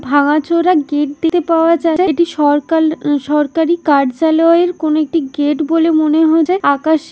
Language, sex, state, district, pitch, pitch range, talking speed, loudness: Bengali, female, West Bengal, Dakshin Dinajpur, 320 Hz, 295-330 Hz, 145 wpm, -13 LUFS